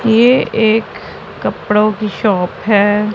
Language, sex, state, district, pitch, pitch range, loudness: Hindi, female, Punjab, Pathankot, 215 Hz, 210-225 Hz, -14 LUFS